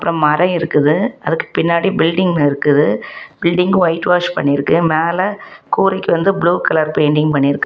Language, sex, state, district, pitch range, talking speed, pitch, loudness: Tamil, female, Tamil Nadu, Kanyakumari, 150-180 Hz, 155 wpm, 170 Hz, -15 LUFS